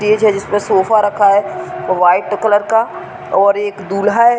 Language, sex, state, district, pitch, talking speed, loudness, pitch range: Hindi, female, Uttar Pradesh, Deoria, 205 Hz, 190 wpm, -14 LUFS, 195-215 Hz